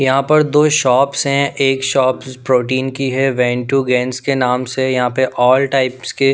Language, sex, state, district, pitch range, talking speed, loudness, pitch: Hindi, male, Punjab, Pathankot, 125-135 Hz, 200 wpm, -15 LUFS, 130 Hz